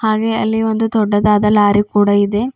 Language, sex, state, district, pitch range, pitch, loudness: Kannada, female, Karnataka, Bidar, 205-220 Hz, 210 Hz, -14 LUFS